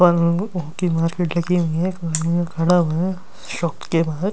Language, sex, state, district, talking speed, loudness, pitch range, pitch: Hindi, male, Delhi, New Delhi, 180 wpm, -20 LUFS, 165-180 Hz, 170 Hz